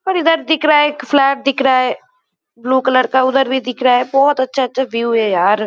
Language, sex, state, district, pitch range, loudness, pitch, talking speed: Hindi, female, West Bengal, Kolkata, 250-290 Hz, -14 LUFS, 265 Hz, 265 wpm